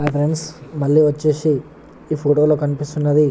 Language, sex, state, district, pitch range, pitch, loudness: Telugu, male, Telangana, Nalgonda, 145-155 Hz, 150 Hz, -18 LUFS